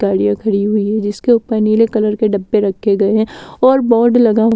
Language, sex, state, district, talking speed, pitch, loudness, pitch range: Hindi, female, Delhi, New Delhi, 210 wpm, 215 Hz, -14 LUFS, 205-230 Hz